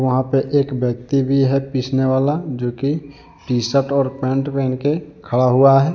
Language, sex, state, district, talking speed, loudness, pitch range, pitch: Hindi, male, Jharkhand, Deoghar, 190 wpm, -18 LUFS, 130-140 Hz, 135 Hz